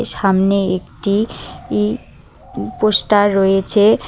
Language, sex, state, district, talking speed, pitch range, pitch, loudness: Bengali, female, West Bengal, Cooch Behar, 105 wpm, 195-210 Hz, 200 Hz, -16 LUFS